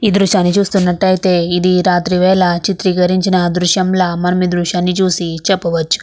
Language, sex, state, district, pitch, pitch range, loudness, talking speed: Telugu, female, Andhra Pradesh, Krishna, 180 Hz, 175-185 Hz, -13 LUFS, 120 wpm